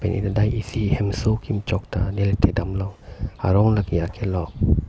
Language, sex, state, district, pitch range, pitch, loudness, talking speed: Karbi, male, Assam, Karbi Anglong, 95-105 Hz, 100 Hz, -22 LUFS, 160 wpm